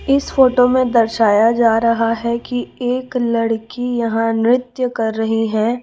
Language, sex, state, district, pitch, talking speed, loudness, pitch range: Hindi, female, Chhattisgarh, Raipur, 235 Hz, 155 wpm, -16 LUFS, 225-250 Hz